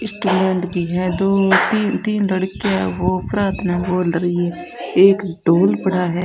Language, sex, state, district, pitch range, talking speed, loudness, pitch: Hindi, female, Rajasthan, Bikaner, 175-195 Hz, 135 wpm, -18 LUFS, 185 Hz